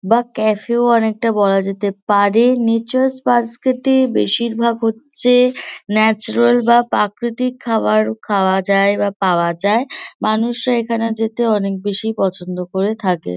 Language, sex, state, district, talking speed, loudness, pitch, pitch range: Bengali, female, West Bengal, Kolkata, 135 wpm, -16 LUFS, 225 Hz, 200-240 Hz